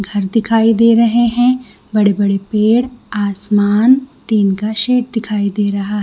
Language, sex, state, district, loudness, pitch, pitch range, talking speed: Hindi, female, Chhattisgarh, Bilaspur, -14 LUFS, 215 Hz, 205-235 Hz, 140 wpm